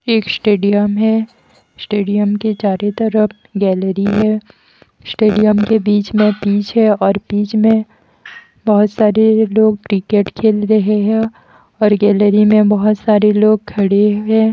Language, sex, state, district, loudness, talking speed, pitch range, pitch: Hindi, female, Haryana, Jhajjar, -13 LUFS, 135 wpm, 205-220 Hz, 210 Hz